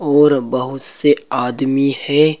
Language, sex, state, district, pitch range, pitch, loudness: Hindi, male, Uttar Pradesh, Saharanpur, 135-145 Hz, 140 Hz, -16 LUFS